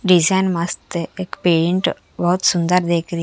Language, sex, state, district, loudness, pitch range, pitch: Hindi, female, Haryana, Charkhi Dadri, -18 LUFS, 170-185 Hz, 175 Hz